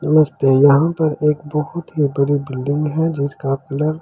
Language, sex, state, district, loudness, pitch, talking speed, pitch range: Hindi, male, Delhi, New Delhi, -17 LUFS, 150 Hz, 180 wpm, 140-155 Hz